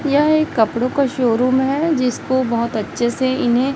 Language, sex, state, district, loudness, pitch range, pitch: Hindi, female, Chhattisgarh, Raipur, -17 LUFS, 240-280 Hz, 260 Hz